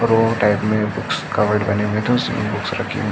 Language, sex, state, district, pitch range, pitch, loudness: Hindi, male, Uttar Pradesh, Jalaun, 105-115 Hz, 105 Hz, -19 LUFS